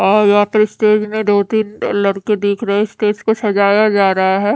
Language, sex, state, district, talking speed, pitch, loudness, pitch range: Hindi, female, Haryana, Charkhi Dadri, 225 wpm, 210 Hz, -14 LUFS, 200-215 Hz